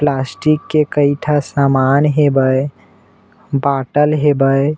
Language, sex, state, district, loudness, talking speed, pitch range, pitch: Chhattisgarhi, male, Chhattisgarh, Bilaspur, -15 LUFS, 100 wpm, 135-150 Hz, 145 Hz